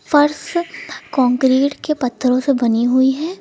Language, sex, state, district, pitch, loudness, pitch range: Hindi, female, Uttar Pradesh, Lucknow, 270 Hz, -17 LUFS, 255-300 Hz